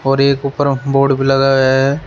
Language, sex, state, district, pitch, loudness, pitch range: Hindi, male, Uttar Pradesh, Shamli, 135 Hz, -13 LUFS, 135-140 Hz